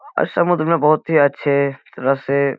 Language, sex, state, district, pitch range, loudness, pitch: Hindi, male, Bihar, Jahanabad, 140-170 Hz, -17 LUFS, 145 Hz